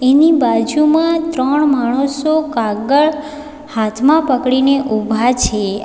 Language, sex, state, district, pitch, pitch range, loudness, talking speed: Gujarati, female, Gujarat, Valsad, 275 Hz, 235-300 Hz, -14 LUFS, 90 wpm